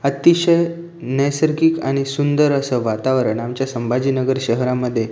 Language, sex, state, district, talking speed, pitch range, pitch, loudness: Marathi, male, Maharashtra, Aurangabad, 105 wpm, 125-150 Hz, 135 Hz, -18 LUFS